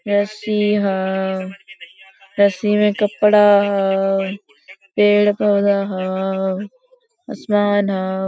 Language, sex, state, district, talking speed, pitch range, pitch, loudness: Hindi, female, Jharkhand, Sahebganj, 80 wpm, 190-210 Hz, 200 Hz, -17 LUFS